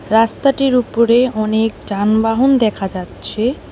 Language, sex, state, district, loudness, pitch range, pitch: Bengali, female, West Bengal, Alipurduar, -15 LUFS, 215-250 Hz, 225 Hz